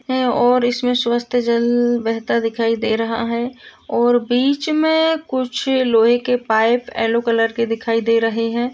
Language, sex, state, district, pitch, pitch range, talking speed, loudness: Hindi, female, Uttar Pradesh, Jalaun, 240 Hz, 230-250 Hz, 165 wpm, -18 LUFS